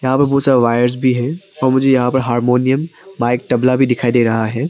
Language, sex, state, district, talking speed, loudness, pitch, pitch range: Hindi, male, Arunachal Pradesh, Papum Pare, 240 wpm, -15 LUFS, 130 Hz, 120-135 Hz